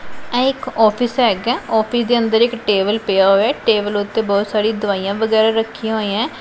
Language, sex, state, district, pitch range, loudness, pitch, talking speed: Punjabi, female, Punjab, Pathankot, 205-235 Hz, -17 LUFS, 220 Hz, 195 wpm